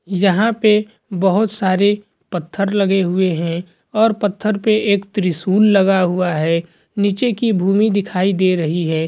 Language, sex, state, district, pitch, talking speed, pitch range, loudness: Hindi, male, Jharkhand, Jamtara, 195 Hz, 150 wpm, 180-210 Hz, -17 LUFS